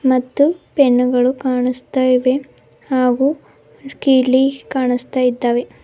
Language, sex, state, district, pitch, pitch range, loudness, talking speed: Kannada, female, Karnataka, Bidar, 255 Hz, 250-270 Hz, -16 LUFS, 80 wpm